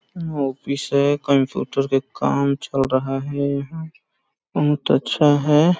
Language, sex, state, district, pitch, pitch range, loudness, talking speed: Hindi, male, Chhattisgarh, Balrampur, 140 Hz, 135-150 Hz, -20 LUFS, 135 wpm